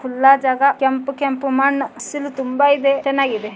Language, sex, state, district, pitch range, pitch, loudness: Kannada, male, Karnataka, Dharwad, 265-280 Hz, 275 Hz, -17 LUFS